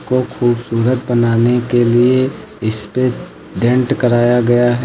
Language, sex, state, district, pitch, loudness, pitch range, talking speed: Hindi, male, Uttar Pradesh, Lucknow, 120 Hz, -15 LUFS, 120-125 Hz, 125 wpm